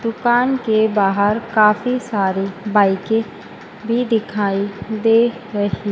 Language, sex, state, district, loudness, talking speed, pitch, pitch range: Hindi, female, Madhya Pradesh, Dhar, -18 LUFS, 100 wpm, 215 Hz, 205-230 Hz